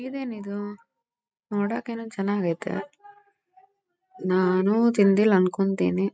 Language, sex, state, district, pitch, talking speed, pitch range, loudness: Kannada, female, Karnataka, Dharwad, 210 Hz, 80 wpm, 195-260 Hz, -24 LUFS